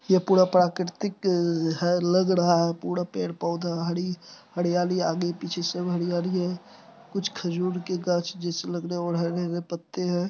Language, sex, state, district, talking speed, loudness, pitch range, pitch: Hindi, male, Bihar, Supaul, 150 wpm, -26 LUFS, 175-180 Hz, 175 Hz